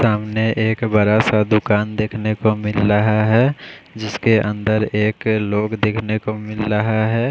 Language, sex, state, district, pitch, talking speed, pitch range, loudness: Hindi, male, Odisha, Khordha, 110 Hz, 165 wpm, 105-110 Hz, -18 LUFS